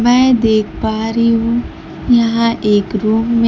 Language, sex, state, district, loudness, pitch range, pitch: Hindi, female, Bihar, Kaimur, -14 LUFS, 220-235 Hz, 230 Hz